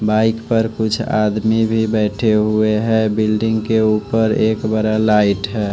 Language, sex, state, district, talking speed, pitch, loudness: Hindi, male, Odisha, Malkangiri, 155 wpm, 110 Hz, -16 LUFS